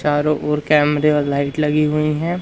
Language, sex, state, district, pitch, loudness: Hindi, male, Madhya Pradesh, Umaria, 150 Hz, -17 LUFS